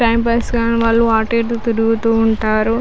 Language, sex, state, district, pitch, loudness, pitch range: Telugu, female, Andhra Pradesh, Chittoor, 230 Hz, -15 LUFS, 225-230 Hz